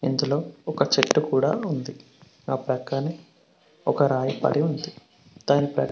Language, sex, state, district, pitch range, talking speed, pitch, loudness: Telugu, male, Telangana, Mahabubabad, 135-155 Hz, 120 wpm, 140 Hz, -24 LUFS